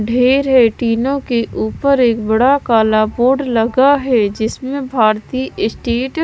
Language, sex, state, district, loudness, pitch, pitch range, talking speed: Hindi, female, Himachal Pradesh, Shimla, -14 LUFS, 245 Hz, 225-265 Hz, 145 wpm